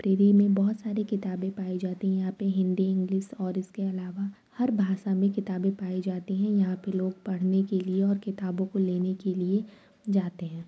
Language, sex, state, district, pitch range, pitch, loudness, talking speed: Hindi, female, Uttar Pradesh, Varanasi, 185-200 Hz, 190 Hz, -28 LUFS, 210 wpm